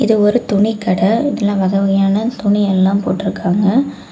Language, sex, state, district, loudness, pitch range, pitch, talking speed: Tamil, female, Tamil Nadu, Kanyakumari, -15 LUFS, 195-220 Hz, 205 Hz, 130 wpm